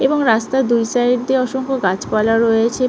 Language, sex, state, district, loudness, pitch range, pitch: Bengali, female, West Bengal, Malda, -16 LUFS, 225-265 Hz, 245 Hz